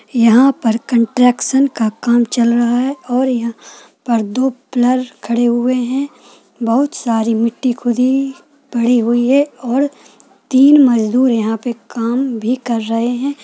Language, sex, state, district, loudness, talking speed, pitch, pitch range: Hindi, female, Bihar, Kishanganj, -15 LUFS, 145 wpm, 245 Hz, 235-265 Hz